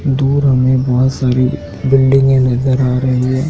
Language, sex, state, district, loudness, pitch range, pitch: Hindi, male, Madhya Pradesh, Dhar, -13 LUFS, 125-135 Hz, 130 Hz